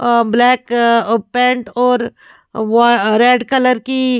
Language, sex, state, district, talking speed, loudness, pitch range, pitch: Hindi, female, Maharashtra, Mumbai Suburban, 145 wpm, -13 LUFS, 235-250 Hz, 240 Hz